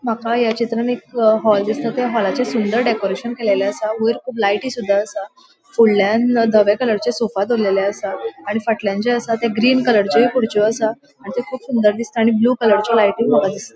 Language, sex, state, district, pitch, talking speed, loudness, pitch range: Konkani, female, Goa, North and South Goa, 225 Hz, 185 wpm, -17 LUFS, 210-240 Hz